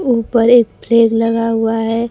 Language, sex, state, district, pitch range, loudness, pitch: Hindi, female, Bihar, Kaimur, 225-235 Hz, -13 LUFS, 230 Hz